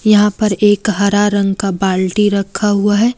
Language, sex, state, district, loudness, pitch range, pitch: Hindi, female, Jharkhand, Deoghar, -14 LUFS, 200-210 Hz, 205 Hz